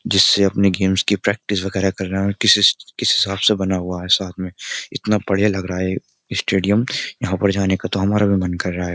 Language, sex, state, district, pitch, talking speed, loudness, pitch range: Hindi, male, Uttar Pradesh, Jyotiba Phule Nagar, 95 Hz, 250 wpm, -18 LUFS, 95-100 Hz